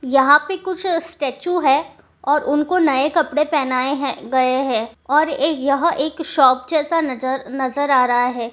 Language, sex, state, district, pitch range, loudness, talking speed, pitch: Hindi, female, Bihar, Supaul, 260-315 Hz, -18 LUFS, 155 wpm, 285 Hz